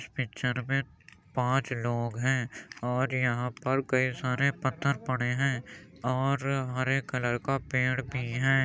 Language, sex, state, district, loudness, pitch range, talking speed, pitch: Hindi, male, Uttar Pradesh, Jyotiba Phule Nagar, -30 LUFS, 125-135 Hz, 140 wpm, 130 Hz